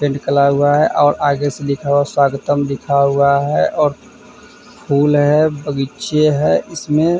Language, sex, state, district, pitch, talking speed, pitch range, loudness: Hindi, male, Bihar, Vaishali, 145 Hz, 165 wpm, 140-155 Hz, -15 LUFS